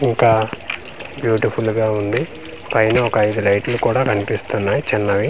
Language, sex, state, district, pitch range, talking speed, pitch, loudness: Telugu, male, Andhra Pradesh, Manyam, 105-115 Hz, 135 wpm, 110 Hz, -18 LUFS